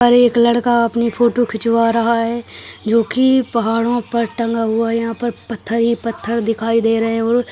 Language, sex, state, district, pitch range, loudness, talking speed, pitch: Hindi, male, Uttarakhand, Tehri Garhwal, 230-235 Hz, -16 LUFS, 210 wpm, 230 Hz